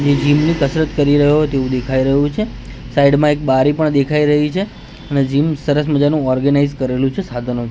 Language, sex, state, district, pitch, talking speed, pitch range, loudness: Gujarati, male, Gujarat, Gandhinagar, 145 Hz, 200 wpm, 135-150 Hz, -15 LUFS